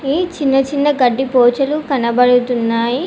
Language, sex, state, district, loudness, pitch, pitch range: Telugu, female, Telangana, Komaram Bheem, -14 LUFS, 265 Hz, 245-280 Hz